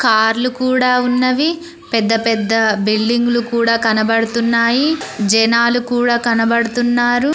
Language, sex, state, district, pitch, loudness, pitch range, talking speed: Telugu, female, Telangana, Mahabubabad, 235 Hz, -15 LUFS, 225-245 Hz, 90 wpm